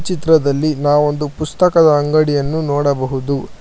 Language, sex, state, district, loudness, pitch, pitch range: Kannada, male, Karnataka, Bangalore, -15 LUFS, 150 Hz, 140-155 Hz